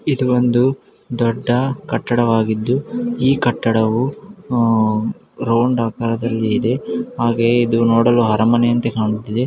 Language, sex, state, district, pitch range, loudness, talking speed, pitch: Kannada, male, Karnataka, Mysore, 115-125 Hz, -17 LUFS, 100 wpm, 120 Hz